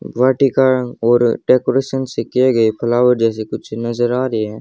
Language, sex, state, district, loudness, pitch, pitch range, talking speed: Hindi, male, Haryana, Jhajjar, -16 LUFS, 120 Hz, 115-130 Hz, 170 wpm